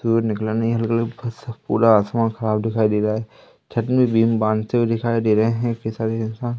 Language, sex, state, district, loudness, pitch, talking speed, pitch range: Hindi, male, Madhya Pradesh, Katni, -20 LUFS, 115 Hz, 220 wpm, 110-115 Hz